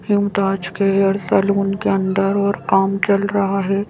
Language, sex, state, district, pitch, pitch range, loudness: Hindi, female, Madhya Pradesh, Bhopal, 195 Hz, 195-200 Hz, -18 LUFS